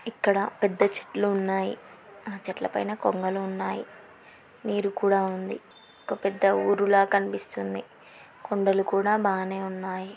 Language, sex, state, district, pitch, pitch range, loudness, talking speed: Telugu, female, Andhra Pradesh, Srikakulam, 195 Hz, 190-200 Hz, -26 LUFS, 125 wpm